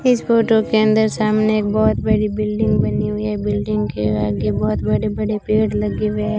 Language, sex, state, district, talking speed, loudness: Hindi, female, Rajasthan, Bikaner, 205 wpm, -18 LUFS